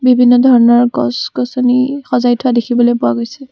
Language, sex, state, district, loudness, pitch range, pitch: Assamese, female, Assam, Kamrup Metropolitan, -12 LUFS, 240-255 Hz, 245 Hz